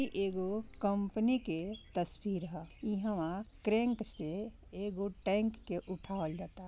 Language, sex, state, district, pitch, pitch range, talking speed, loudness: Bhojpuri, female, Bihar, Gopalganj, 200 Hz, 185-215 Hz, 125 wpm, -37 LUFS